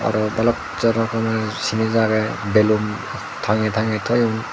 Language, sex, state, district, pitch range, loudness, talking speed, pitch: Chakma, male, Tripura, Dhalai, 110-115 Hz, -20 LUFS, 130 wpm, 110 Hz